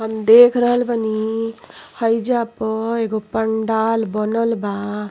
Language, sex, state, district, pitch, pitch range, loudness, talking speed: Bhojpuri, female, Uttar Pradesh, Ghazipur, 225 Hz, 220-230 Hz, -18 LUFS, 105 wpm